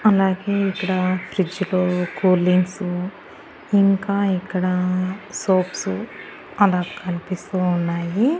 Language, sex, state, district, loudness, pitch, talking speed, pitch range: Telugu, female, Andhra Pradesh, Annamaya, -21 LUFS, 185 Hz, 85 wpm, 180-195 Hz